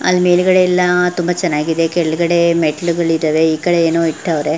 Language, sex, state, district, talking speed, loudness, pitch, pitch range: Kannada, female, Karnataka, Belgaum, 145 wpm, -14 LUFS, 170 Hz, 160-180 Hz